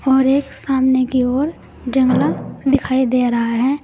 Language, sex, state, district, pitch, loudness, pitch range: Hindi, female, Uttar Pradesh, Saharanpur, 260 Hz, -17 LUFS, 255-270 Hz